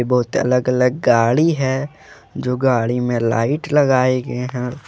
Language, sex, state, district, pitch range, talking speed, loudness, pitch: Hindi, male, Jharkhand, Deoghar, 125-135 Hz, 145 wpm, -17 LUFS, 125 Hz